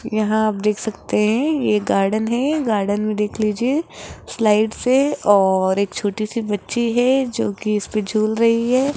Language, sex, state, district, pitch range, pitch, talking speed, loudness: Hindi, female, Rajasthan, Jaipur, 210-240 Hz, 215 Hz, 165 wpm, -19 LUFS